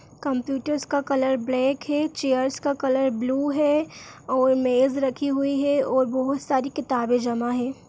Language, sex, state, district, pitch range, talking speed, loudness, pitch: Kumaoni, female, Uttarakhand, Uttarkashi, 260-285 Hz, 160 wpm, -23 LUFS, 270 Hz